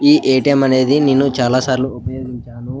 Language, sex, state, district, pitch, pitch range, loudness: Telugu, male, Andhra Pradesh, Anantapur, 130 Hz, 125-135 Hz, -14 LUFS